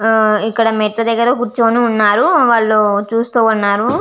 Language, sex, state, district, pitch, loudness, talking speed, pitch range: Telugu, female, Andhra Pradesh, Visakhapatnam, 225 Hz, -13 LUFS, 135 wpm, 215-235 Hz